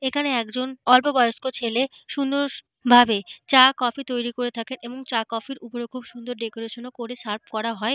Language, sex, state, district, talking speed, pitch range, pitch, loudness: Bengali, female, Jharkhand, Jamtara, 195 wpm, 230-260 Hz, 245 Hz, -22 LUFS